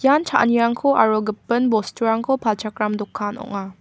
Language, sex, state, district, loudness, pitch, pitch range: Garo, female, Meghalaya, West Garo Hills, -20 LUFS, 220 Hz, 210-245 Hz